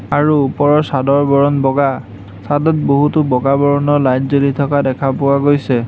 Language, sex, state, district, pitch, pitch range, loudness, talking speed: Assamese, male, Assam, Hailakandi, 140 Hz, 135-145 Hz, -14 LUFS, 155 wpm